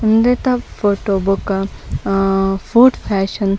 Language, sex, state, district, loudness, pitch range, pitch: Tulu, female, Karnataka, Dakshina Kannada, -16 LUFS, 195-225 Hz, 200 Hz